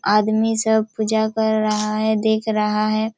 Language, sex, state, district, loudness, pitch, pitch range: Hindi, female, Chhattisgarh, Raigarh, -19 LUFS, 220 Hz, 215-220 Hz